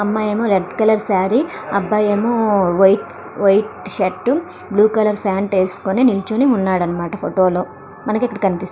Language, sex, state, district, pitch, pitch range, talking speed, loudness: Telugu, female, Andhra Pradesh, Srikakulam, 205 Hz, 190-220 Hz, 150 wpm, -17 LUFS